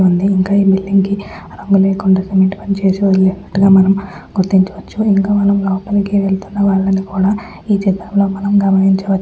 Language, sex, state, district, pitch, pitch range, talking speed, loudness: Telugu, female, Telangana, Nalgonda, 195 Hz, 190-200 Hz, 145 wpm, -14 LUFS